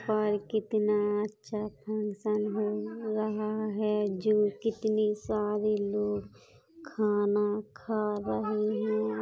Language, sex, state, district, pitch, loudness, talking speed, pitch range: Hindi, female, Uttar Pradesh, Jalaun, 210 Hz, -30 LUFS, 100 wpm, 210-215 Hz